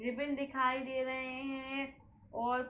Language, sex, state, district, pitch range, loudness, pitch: Hindi, female, Uttar Pradesh, Hamirpur, 255-270 Hz, -37 LUFS, 260 Hz